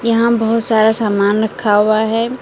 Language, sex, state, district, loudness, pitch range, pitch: Hindi, female, Uttar Pradesh, Lucknow, -14 LUFS, 215-230 Hz, 220 Hz